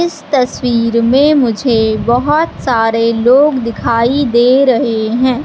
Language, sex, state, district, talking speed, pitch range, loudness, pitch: Hindi, female, Madhya Pradesh, Katni, 120 wpm, 230-275 Hz, -12 LUFS, 245 Hz